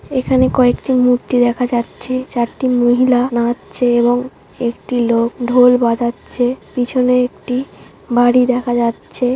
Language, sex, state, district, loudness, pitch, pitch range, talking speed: Bengali, female, West Bengal, Jhargram, -15 LUFS, 245 Hz, 240-250 Hz, 115 wpm